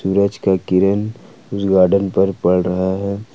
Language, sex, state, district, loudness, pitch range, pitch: Hindi, male, Jharkhand, Ranchi, -17 LUFS, 95-100 Hz, 95 Hz